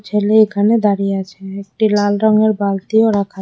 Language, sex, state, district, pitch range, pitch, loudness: Bengali, female, Tripura, West Tripura, 195-215 Hz, 205 Hz, -15 LUFS